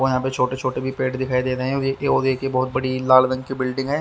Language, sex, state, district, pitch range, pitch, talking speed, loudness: Hindi, male, Haryana, Charkhi Dadri, 130-135 Hz, 130 Hz, 300 wpm, -21 LUFS